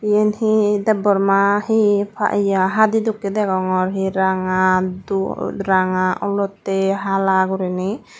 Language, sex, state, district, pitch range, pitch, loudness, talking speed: Chakma, female, Tripura, Dhalai, 190-205 Hz, 195 Hz, -18 LUFS, 110 wpm